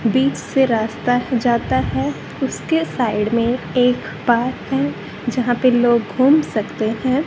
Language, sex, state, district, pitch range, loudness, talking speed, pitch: Hindi, female, Haryana, Charkhi Dadri, 225-260 Hz, -18 LUFS, 140 wpm, 245 Hz